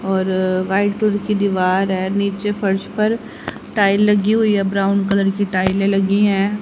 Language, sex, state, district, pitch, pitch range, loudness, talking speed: Hindi, female, Haryana, Jhajjar, 200 Hz, 195-205 Hz, -17 LUFS, 170 wpm